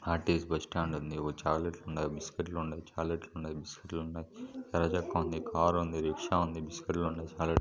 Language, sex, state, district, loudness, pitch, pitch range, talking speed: Telugu, male, Andhra Pradesh, Krishna, -35 LUFS, 80 Hz, 80-85 Hz, 135 wpm